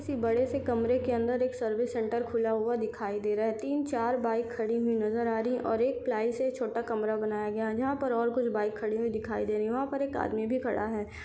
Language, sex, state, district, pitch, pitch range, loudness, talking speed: Hindi, female, Chhattisgarh, Sarguja, 230 Hz, 220-250 Hz, -30 LUFS, 265 wpm